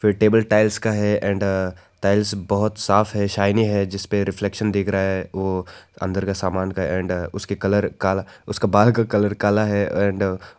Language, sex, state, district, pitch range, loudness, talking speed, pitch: Hindi, male, Arunachal Pradesh, Lower Dibang Valley, 95-105 Hz, -21 LUFS, 195 wpm, 100 Hz